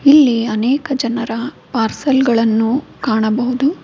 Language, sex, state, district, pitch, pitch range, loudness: Kannada, female, Karnataka, Bangalore, 245 Hz, 225-275 Hz, -16 LUFS